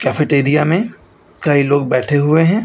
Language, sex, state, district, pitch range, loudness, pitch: Hindi, male, Uttar Pradesh, Lucknow, 140-160 Hz, -14 LUFS, 150 Hz